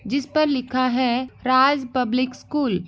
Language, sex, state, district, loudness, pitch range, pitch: Hindi, female, Uttar Pradesh, Ghazipur, -21 LUFS, 255-275 Hz, 255 Hz